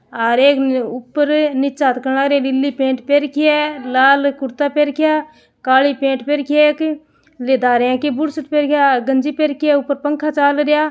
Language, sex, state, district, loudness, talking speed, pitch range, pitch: Hindi, female, Rajasthan, Churu, -15 LUFS, 215 wpm, 265-300 Hz, 285 Hz